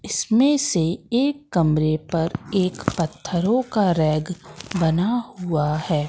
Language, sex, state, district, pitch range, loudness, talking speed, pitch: Hindi, female, Madhya Pradesh, Katni, 155-210 Hz, -22 LUFS, 120 wpm, 175 Hz